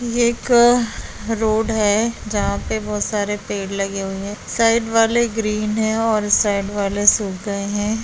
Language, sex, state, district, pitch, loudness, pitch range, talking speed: Hindi, female, Bihar, Begusarai, 215 Hz, -19 LUFS, 205-225 Hz, 170 wpm